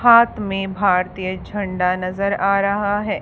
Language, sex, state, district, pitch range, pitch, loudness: Hindi, female, Haryana, Charkhi Dadri, 185-205 Hz, 200 Hz, -19 LUFS